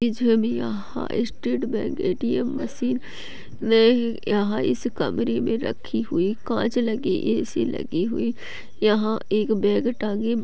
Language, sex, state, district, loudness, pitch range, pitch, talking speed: Hindi, female, Uttar Pradesh, Jyotiba Phule Nagar, -24 LUFS, 210-235 Hz, 220 Hz, 120 wpm